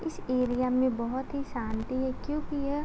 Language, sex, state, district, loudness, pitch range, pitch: Hindi, female, Uttar Pradesh, Gorakhpur, -31 LUFS, 250-290 Hz, 260 Hz